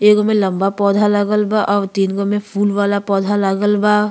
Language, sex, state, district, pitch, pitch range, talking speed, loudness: Bhojpuri, female, Uttar Pradesh, Ghazipur, 205 Hz, 200-210 Hz, 205 wpm, -16 LUFS